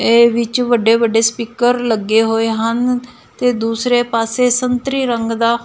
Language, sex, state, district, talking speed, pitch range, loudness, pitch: Punjabi, female, Punjab, Fazilka, 150 wpm, 225-245 Hz, -15 LUFS, 235 Hz